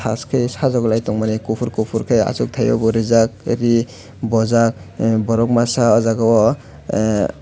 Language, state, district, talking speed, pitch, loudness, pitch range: Kokborok, Tripura, West Tripura, 130 wpm, 115 Hz, -17 LUFS, 110-120 Hz